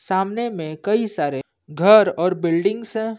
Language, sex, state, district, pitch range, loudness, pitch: Hindi, male, Jharkhand, Ranchi, 165-215 Hz, -19 LUFS, 195 Hz